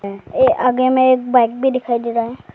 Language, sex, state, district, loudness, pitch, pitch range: Hindi, male, Arunachal Pradesh, Lower Dibang Valley, -16 LUFS, 245 Hz, 235-255 Hz